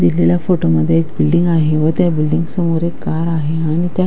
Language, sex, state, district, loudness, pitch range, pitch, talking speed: Marathi, female, Maharashtra, Dhule, -15 LUFS, 105-170 Hz, 160 Hz, 220 wpm